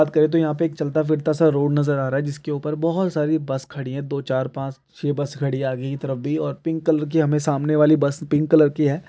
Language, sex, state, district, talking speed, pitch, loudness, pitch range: Maithili, male, Bihar, Araria, 290 wpm, 150 Hz, -21 LUFS, 140-155 Hz